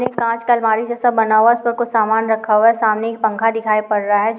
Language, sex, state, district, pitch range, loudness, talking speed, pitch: Hindi, female, Bihar, Muzaffarpur, 215-235 Hz, -16 LUFS, 300 wpm, 225 Hz